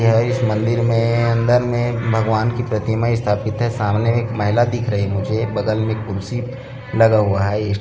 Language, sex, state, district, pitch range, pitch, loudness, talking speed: Hindi, male, Chhattisgarh, Bilaspur, 105-120 Hz, 115 Hz, -18 LUFS, 175 wpm